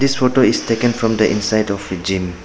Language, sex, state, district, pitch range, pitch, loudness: English, male, Arunachal Pradesh, Papum Pare, 95-120 Hz, 110 Hz, -17 LUFS